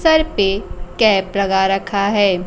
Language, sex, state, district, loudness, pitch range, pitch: Hindi, female, Bihar, Kaimur, -16 LUFS, 195-210 Hz, 200 Hz